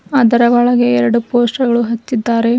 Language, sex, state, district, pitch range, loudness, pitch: Kannada, female, Karnataka, Bidar, 235-240 Hz, -13 LUFS, 235 Hz